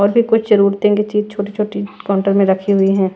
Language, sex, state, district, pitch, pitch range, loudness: Hindi, female, Punjab, Pathankot, 200 Hz, 195-210 Hz, -15 LUFS